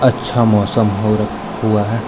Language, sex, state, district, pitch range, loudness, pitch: Hindi, male, Arunachal Pradesh, Lower Dibang Valley, 105-115 Hz, -16 LUFS, 110 Hz